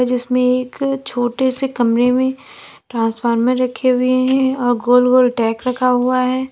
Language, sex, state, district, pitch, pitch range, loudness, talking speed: Hindi, female, Uttar Pradesh, Lalitpur, 250 Hz, 245-260 Hz, -16 LUFS, 145 wpm